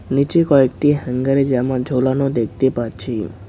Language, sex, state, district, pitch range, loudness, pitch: Bengali, male, West Bengal, Cooch Behar, 120-140 Hz, -17 LUFS, 130 Hz